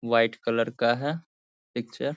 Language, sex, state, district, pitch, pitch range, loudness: Hindi, male, Bihar, Saharsa, 115 Hz, 115-125 Hz, -27 LUFS